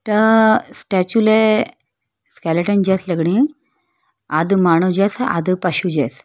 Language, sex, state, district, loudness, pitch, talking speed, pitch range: Hindi, female, Uttarakhand, Tehri Garhwal, -16 LUFS, 195 Hz, 115 wpm, 175-220 Hz